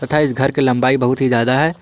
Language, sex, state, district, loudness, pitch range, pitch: Hindi, male, Jharkhand, Garhwa, -15 LUFS, 130-145 Hz, 130 Hz